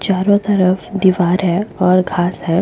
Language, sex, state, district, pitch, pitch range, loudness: Hindi, female, Goa, North and South Goa, 185 Hz, 180-195 Hz, -15 LUFS